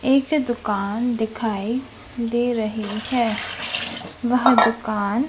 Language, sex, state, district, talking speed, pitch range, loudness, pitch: Hindi, female, Madhya Pradesh, Dhar, 90 wpm, 215-245 Hz, -22 LUFS, 235 Hz